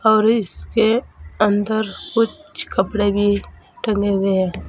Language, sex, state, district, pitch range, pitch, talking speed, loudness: Hindi, female, Uttar Pradesh, Saharanpur, 195-220 Hz, 205 Hz, 115 wpm, -19 LUFS